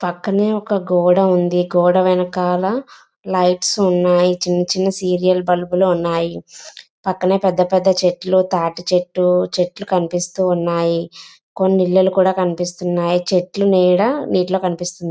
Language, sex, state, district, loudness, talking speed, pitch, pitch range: Telugu, female, Andhra Pradesh, Visakhapatnam, -17 LUFS, 125 wpm, 180 Hz, 175-190 Hz